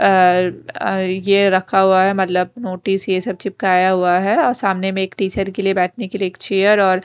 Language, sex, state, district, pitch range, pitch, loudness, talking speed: Hindi, female, Punjab, Kapurthala, 185-195 Hz, 190 Hz, -17 LUFS, 210 wpm